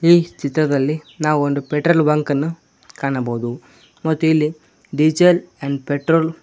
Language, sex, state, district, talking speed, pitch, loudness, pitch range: Kannada, male, Karnataka, Koppal, 130 wpm, 150 Hz, -18 LUFS, 140-160 Hz